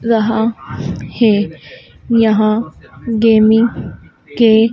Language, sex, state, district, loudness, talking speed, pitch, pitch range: Hindi, female, Madhya Pradesh, Dhar, -14 LUFS, 65 wpm, 225 Hz, 215-230 Hz